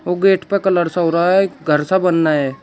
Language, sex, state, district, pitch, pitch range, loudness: Hindi, male, Uttar Pradesh, Shamli, 175 Hz, 160-190 Hz, -16 LUFS